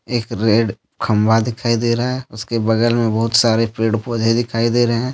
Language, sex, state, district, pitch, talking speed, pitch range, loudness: Hindi, male, Jharkhand, Deoghar, 115 Hz, 210 wpm, 110-120 Hz, -17 LUFS